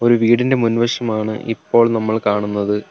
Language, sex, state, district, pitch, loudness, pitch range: Malayalam, male, Kerala, Kollam, 115 Hz, -17 LUFS, 110-120 Hz